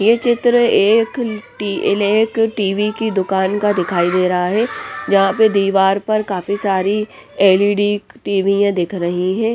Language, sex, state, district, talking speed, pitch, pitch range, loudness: Hindi, female, Punjab, Pathankot, 155 wpm, 200 Hz, 195-220 Hz, -16 LUFS